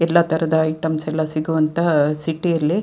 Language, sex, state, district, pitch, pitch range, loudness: Kannada, female, Karnataka, Dakshina Kannada, 160 Hz, 155-165 Hz, -19 LUFS